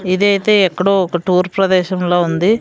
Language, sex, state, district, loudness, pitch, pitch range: Telugu, female, Andhra Pradesh, Sri Satya Sai, -14 LUFS, 185 Hz, 180-195 Hz